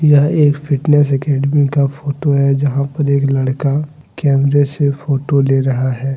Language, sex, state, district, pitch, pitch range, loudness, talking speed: Hindi, male, Jharkhand, Deoghar, 140 Hz, 140-145 Hz, -15 LUFS, 165 wpm